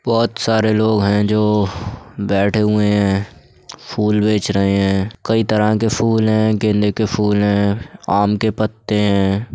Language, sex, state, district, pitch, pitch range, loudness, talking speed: Hindi, male, Uttar Pradesh, Budaun, 105 Hz, 100-110 Hz, -16 LUFS, 155 wpm